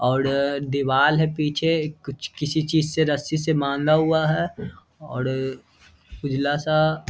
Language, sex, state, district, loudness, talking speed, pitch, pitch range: Hindi, male, Bihar, Vaishali, -22 LUFS, 135 wpm, 150 Hz, 140-155 Hz